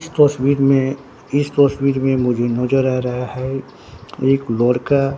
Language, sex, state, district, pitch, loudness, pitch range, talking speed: Hindi, male, Bihar, Katihar, 135 Hz, -17 LUFS, 125-140 Hz, 150 wpm